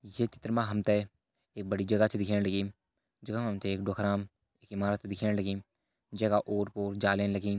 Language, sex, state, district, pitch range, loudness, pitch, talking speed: Hindi, male, Uttarakhand, Uttarkashi, 100-105 Hz, -32 LUFS, 100 Hz, 195 wpm